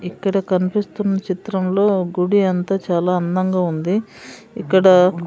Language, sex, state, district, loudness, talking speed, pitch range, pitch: Telugu, female, Andhra Pradesh, Sri Satya Sai, -18 LUFS, 115 wpm, 180-195 Hz, 190 Hz